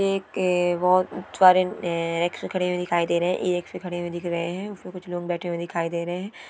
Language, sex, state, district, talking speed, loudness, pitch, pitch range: Hindi, female, Bihar, Saran, 205 wpm, -24 LUFS, 175 Hz, 170-185 Hz